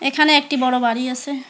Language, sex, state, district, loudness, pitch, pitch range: Bengali, female, West Bengal, Alipurduar, -17 LUFS, 270 Hz, 255-285 Hz